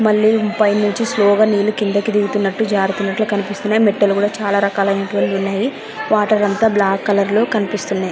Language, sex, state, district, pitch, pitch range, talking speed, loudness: Telugu, female, Andhra Pradesh, Anantapur, 205 Hz, 200-215 Hz, 170 wpm, -16 LUFS